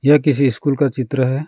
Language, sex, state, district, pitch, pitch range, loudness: Hindi, male, West Bengal, Alipurduar, 140 Hz, 130-145 Hz, -17 LUFS